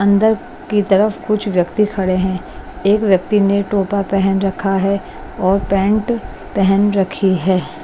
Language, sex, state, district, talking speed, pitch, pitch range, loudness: Hindi, female, Bihar, West Champaran, 145 wpm, 195 Hz, 190-205 Hz, -16 LUFS